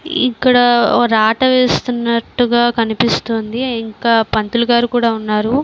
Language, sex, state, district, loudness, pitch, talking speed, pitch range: Telugu, female, Andhra Pradesh, Visakhapatnam, -14 LUFS, 235 Hz, 95 wpm, 225-245 Hz